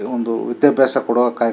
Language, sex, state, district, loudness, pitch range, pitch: Kannada, male, Karnataka, Shimoga, -17 LUFS, 115-135 Hz, 120 Hz